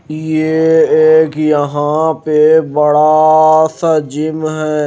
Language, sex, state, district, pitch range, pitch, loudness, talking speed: Hindi, male, Himachal Pradesh, Shimla, 150-160 Hz, 155 Hz, -11 LUFS, 100 wpm